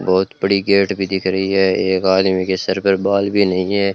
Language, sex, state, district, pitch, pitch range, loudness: Hindi, male, Rajasthan, Bikaner, 95 Hz, 95-100 Hz, -16 LUFS